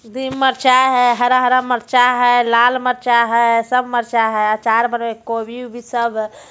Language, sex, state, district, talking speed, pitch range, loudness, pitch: Hindi, female, Bihar, Jamui, 175 wpm, 235-250 Hz, -15 LUFS, 240 Hz